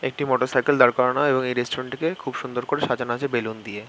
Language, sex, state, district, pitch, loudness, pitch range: Bengali, male, West Bengal, Malda, 125 Hz, -23 LUFS, 120-135 Hz